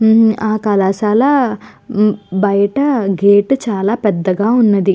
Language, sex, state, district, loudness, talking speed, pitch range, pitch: Telugu, female, Andhra Pradesh, Guntur, -14 LUFS, 95 wpm, 200-225 Hz, 210 Hz